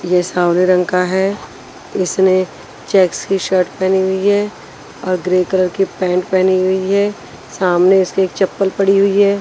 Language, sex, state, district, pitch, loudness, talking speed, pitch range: Hindi, female, Punjab, Pathankot, 190 Hz, -15 LUFS, 170 wpm, 185-195 Hz